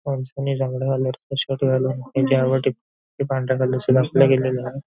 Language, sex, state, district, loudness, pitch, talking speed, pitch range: Marathi, male, Maharashtra, Nagpur, -21 LUFS, 130 Hz, 185 wpm, 130-135 Hz